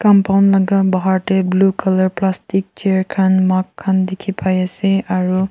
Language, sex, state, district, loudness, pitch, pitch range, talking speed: Nagamese, female, Nagaland, Kohima, -16 LUFS, 190 Hz, 185-195 Hz, 140 wpm